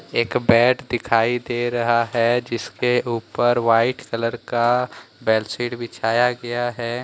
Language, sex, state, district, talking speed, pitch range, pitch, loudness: Hindi, male, Jharkhand, Deoghar, 130 wpm, 115-120 Hz, 120 Hz, -20 LUFS